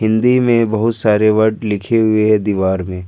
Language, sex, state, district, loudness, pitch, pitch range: Hindi, male, Jharkhand, Ranchi, -14 LUFS, 110 Hz, 105-115 Hz